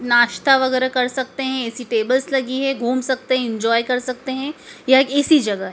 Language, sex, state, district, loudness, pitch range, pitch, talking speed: Hindi, female, Madhya Pradesh, Dhar, -19 LUFS, 240-265 Hz, 255 Hz, 210 wpm